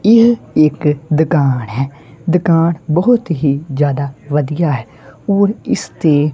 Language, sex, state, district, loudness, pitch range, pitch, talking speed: Punjabi, male, Punjab, Kapurthala, -15 LUFS, 140-170 Hz, 150 Hz, 125 wpm